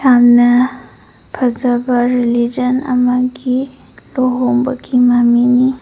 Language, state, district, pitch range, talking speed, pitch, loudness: Manipuri, Manipur, Imphal West, 245-255 Hz, 60 wpm, 250 Hz, -13 LUFS